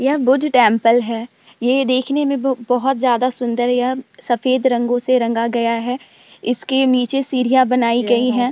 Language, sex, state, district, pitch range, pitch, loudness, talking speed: Hindi, female, Bihar, Vaishali, 240-260 Hz, 250 Hz, -17 LUFS, 175 wpm